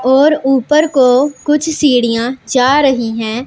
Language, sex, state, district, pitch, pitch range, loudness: Hindi, female, Punjab, Pathankot, 265 Hz, 245-295 Hz, -12 LUFS